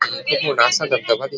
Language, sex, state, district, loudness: Marathi, male, Maharashtra, Dhule, -18 LUFS